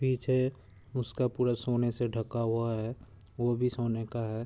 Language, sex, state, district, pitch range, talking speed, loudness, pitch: Hindi, male, Uttar Pradesh, Budaun, 115-125 Hz, 175 wpm, -32 LUFS, 120 Hz